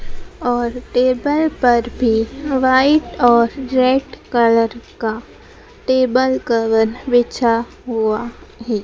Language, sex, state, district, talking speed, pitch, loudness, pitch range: Hindi, female, Madhya Pradesh, Dhar, 95 wpm, 245 Hz, -17 LUFS, 230-260 Hz